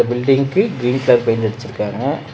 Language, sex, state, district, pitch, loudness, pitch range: Tamil, male, Tamil Nadu, Namakkal, 125 Hz, -17 LUFS, 115-135 Hz